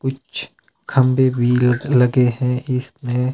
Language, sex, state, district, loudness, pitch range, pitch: Hindi, male, Himachal Pradesh, Shimla, -18 LUFS, 125-130 Hz, 125 Hz